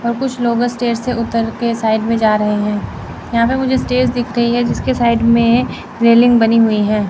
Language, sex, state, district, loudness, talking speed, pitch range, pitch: Hindi, female, Chandigarh, Chandigarh, -14 LUFS, 220 wpm, 225-240 Hz, 235 Hz